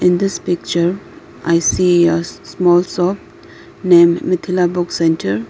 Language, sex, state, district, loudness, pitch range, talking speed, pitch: English, female, Arunachal Pradesh, Lower Dibang Valley, -15 LUFS, 170-180 Hz, 130 wpm, 175 Hz